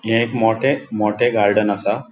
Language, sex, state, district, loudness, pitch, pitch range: Konkani, male, Goa, North and South Goa, -18 LUFS, 110 Hz, 105-120 Hz